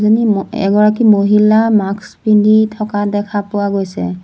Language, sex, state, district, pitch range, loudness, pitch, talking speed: Assamese, female, Assam, Sonitpur, 200-215 Hz, -13 LUFS, 210 Hz, 115 wpm